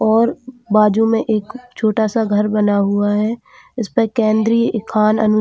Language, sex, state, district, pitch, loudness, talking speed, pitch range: Hindi, female, Chhattisgarh, Bilaspur, 220 Hz, -16 LUFS, 155 wpm, 215-230 Hz